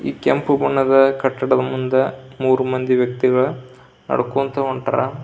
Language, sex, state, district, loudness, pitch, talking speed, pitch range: Kannada, male, Karnataka, Belgaum, -18 LUFS, 130 Hz, 115 wpm, 130-135 Hz